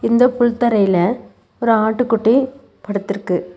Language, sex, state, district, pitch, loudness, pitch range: Tamil, female, Tamil Nadu, Nilgiris, 225 Hz, -17 LUFS, 200-245 Hz